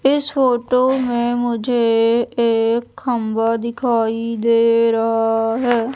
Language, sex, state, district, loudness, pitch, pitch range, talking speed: Hindi, female, Madhya Pradesh, Umaria, -17 LUFS, 235 Hz, 230-245 Hz, 100 wpm